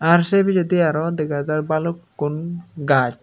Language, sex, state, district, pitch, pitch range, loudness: Chakma, male, Tripura, Unakoti, 160 Hz, 150-170 Hz, -20 LUFS